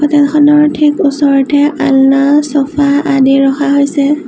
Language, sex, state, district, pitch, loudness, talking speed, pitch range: Assamese, female, Assam, Sonitpur, 285 Hz, -9 LUFS, 125 wpm, 275-295 Hz